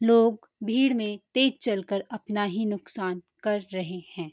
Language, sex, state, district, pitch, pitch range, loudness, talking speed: Hindi, female, Uttarakhand, Uttarkashi, 210 Hz, 195-230 Hz, -27 LUFS, 150 wpm